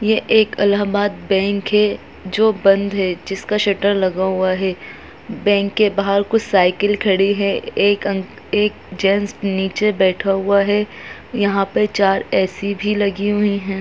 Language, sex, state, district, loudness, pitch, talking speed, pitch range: Hindi, female, Bihar, Muzaffarpur, -17 LUFS, 200 Hz, 155 wpm, 195-205 Hz